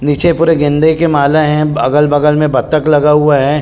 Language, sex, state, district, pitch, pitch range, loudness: Chhattisgarhi, male, Chhattisgarh, Rajnandgaon, 150 Hz, 145-155 Hz, -11 LUFS